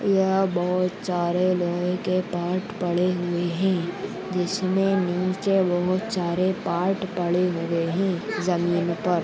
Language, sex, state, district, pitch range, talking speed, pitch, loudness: Hindi, female, Maharashtra, Nagpur, 175-190 Hz, 125 wpm, 180 Hz, -24 LUFS